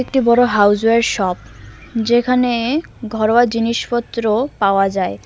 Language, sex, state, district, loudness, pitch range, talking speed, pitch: Bengali, male, West Bengal, Cooch Behar, -16 LUFS, 200-240 Hz, 100 wpm, 230 Hz